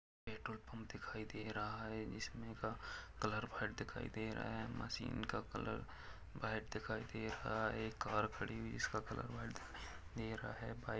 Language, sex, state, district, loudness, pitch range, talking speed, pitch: Hindi, male, Chhattisgarh, Sukma, -45 LUFS, 110-115 Hz, 190 wpm, 110 Hz